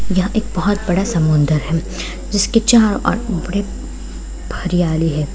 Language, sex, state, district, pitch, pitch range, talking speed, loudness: Hindi, female, Bihar, Sitamarhi, 180 Hz, 155-205 Hz, 135 wpm, -17 LUFS